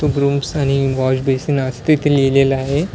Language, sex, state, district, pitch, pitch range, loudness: Marathi, male, Maharashtra, Washim, 140 Hz, 135-145 Hz, -16 LUFS